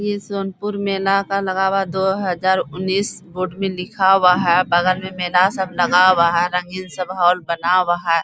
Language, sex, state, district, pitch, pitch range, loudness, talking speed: Hindi, female, Bihar, Bhagalpur, 185 Hz, 180-195 Hz, -18 LUFS, 205 wpm